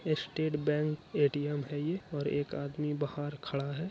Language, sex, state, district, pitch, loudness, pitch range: Hindi, male, Bihar, Araria, 145 Hz, -34 LUFS, 145-155 Hz